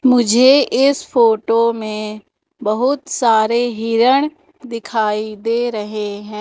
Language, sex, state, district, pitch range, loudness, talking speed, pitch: Hindi, female, Madhya Pradesh, Umaria, 215-260 Hz, -16 LUFS, 105 wpm, 230 Hz